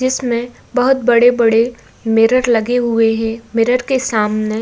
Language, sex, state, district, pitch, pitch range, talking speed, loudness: Hindi, female, Uttar Pradesh, Budaun, 235 Hz, 225-250 Hz, 145 wpm, -14 LUFS